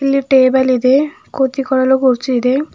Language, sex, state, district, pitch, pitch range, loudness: Kannada, female, Karnataka, Bidar, 265 Hz, 260-275 Hz, -14 LUFS